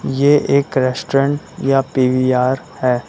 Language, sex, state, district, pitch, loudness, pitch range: Hindi, male, Uttar Pradesh, Lucknow, 135 Hz, -16 LUFS, 130-140 Hz